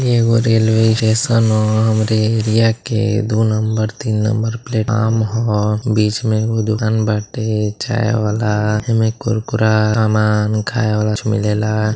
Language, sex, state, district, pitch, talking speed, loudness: Bhojpuri, male, Uttar Pradesh, Deoria, 110 Hz, 140 wpm, -16 LUFS